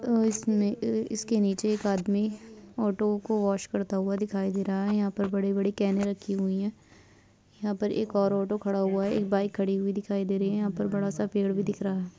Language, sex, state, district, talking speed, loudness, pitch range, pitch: Hindi, female, Bihar, Saharsa, 225 wpm, -28 LUFS, 195-210 Hz, 200 Hz